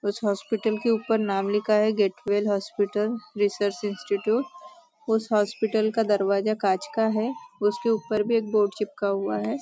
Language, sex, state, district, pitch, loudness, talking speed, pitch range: Hindi, female, Maharashtra, Nagpur, 215 Hz, -25 LUFS, 170 wpm, 205-225 Hz